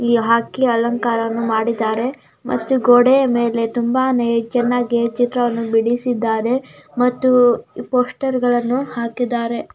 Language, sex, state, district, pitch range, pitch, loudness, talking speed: Kannada, female, Karnataka, Gulbarga, 235-250 Hz, 240 Hz, -17 LUFS, 90 wpm